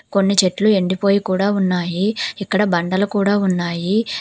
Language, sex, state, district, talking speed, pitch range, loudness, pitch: Telugu, female, Telangana, Hyderabad, 130 wpm, 185-205 Hz, -18 LUFS, 195 Hz